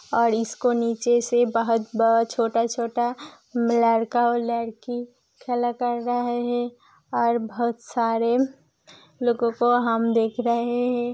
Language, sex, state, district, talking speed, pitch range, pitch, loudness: Hindi, female, Uttar Pradesh, Hamirpur, 130 wpm, 230-240 Hz, 235 Hz, -23 LUFS